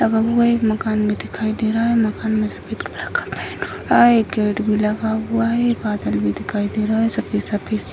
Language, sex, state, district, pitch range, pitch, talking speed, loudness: Hindi, female, Bihar, Sitamarhi, 210-230 Hz, 220 Hz, 255 wpm, -19 LUFS